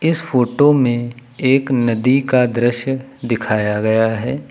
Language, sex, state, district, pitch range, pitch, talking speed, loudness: Hindi, male, Uttar Pradesh, Lucknow, 120-135 Hz, 125 Hz, 135 wpm, -16 LUFS